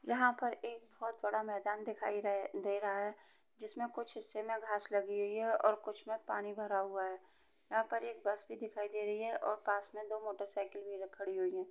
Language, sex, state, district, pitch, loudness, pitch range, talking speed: Hindi, female, Uttar Pradesh, Jalaun, 215 Hz, -39 LUFS, 205-225 Hz, 225 wpm